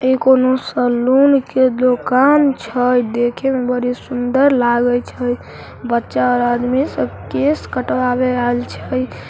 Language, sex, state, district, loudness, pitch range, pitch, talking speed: Maithili, female, Bihar, Samastipur, -16 LUFS, 245-260 Hz, 250 Hz, 130 wpm